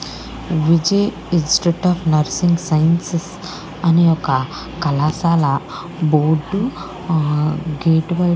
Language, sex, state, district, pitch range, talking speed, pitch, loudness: Telugu, female, Andhra Pradesh, Srikakulam, 155-175 Hz, 85 wpm, 165 Hz, -17 LUFS